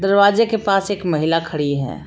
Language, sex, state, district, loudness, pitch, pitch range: Hindi, female, Jharkhand, Palamu, -18 LUFS, 195 Hz, 155-200 Hz